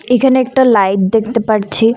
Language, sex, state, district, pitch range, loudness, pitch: Bengali, female, Assam, Kamrup Metropolitan, 215-250 Hz, -12 LUFS, 230 Hz